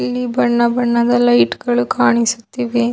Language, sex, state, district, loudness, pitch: Kannada, female, Karnataka, Belgaum, -15 LUFS, 125 Hz